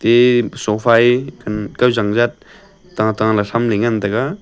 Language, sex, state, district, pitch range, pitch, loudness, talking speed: Wancho, male, Arunachal Pradesh, Longding, 110-125 Hz, 115 Hz, -16 LUFS, 175 wpm